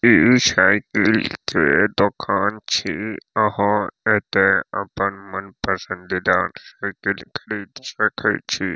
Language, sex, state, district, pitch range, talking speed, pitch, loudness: Maithili, male, Bihar, Saharsa, 100-105 Hz, 95 wpm, 100 Hz, -20 LUFS